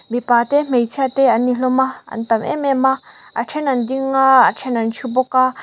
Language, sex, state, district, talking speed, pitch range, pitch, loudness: Mizo, female, Mizoram, Aizawl, 245 wpm, 240-265 Hz, 255 Hz, -17 LUFS